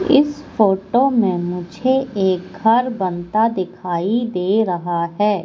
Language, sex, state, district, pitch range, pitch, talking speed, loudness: Hindi, female, Madhya Pradesh, Katni, 180-235 Hz, 200 Hz, 120 wpm, -18 LUFS